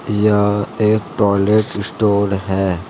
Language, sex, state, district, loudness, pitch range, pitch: Hindi, male, Jharkhand, Deoghar, -16 LUFS, 100-105 Hz, 105 Hz